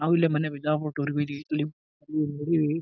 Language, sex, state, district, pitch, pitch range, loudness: Kannada, male, Karnataka, Bijapur, 150 Hz, 145-155 Hz, -28 LUFS